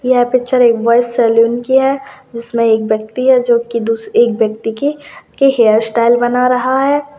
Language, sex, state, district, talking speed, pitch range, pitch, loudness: Hindi, female, Rajasthan, Churu, 185 wpm, 230-260 Hz, 240 Hz, -13 LUFS